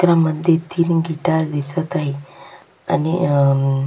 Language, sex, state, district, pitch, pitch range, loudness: Marathi, female, Maharashtra, Sindhudurg, 160 Hz, 140-170 Hz, -18 LUFS